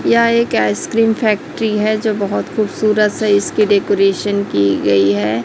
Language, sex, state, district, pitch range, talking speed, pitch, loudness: Hindi, female, Chhattisgarh, Raipur, 195-215 Hz, 155 wpm, 205 Hz, -15 LUFS